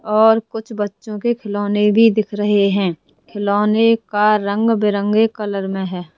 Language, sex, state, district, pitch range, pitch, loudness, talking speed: Hindi, male, Rajasthan, Jaipur, 200-220 Hz, 210 Hz, -17 LUFS, 155 wpm